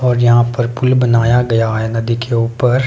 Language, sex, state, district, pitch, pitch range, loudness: Hindi, male, Himachal Pradesh, Shimla, 120 Hz, 115-125 Hz, -14 LUFS